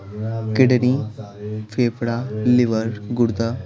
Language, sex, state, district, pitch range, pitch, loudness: Hindi, male, Bihar, Patna, 110-120 Hz, 115 Hz, -20 LUFS